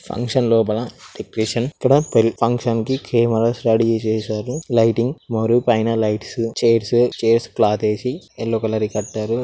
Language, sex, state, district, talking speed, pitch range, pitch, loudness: Telugu, male, Andhra Pradesh, Krishna, 140 wpm, 110-120 Hz, 115 Hz, -19 LUFS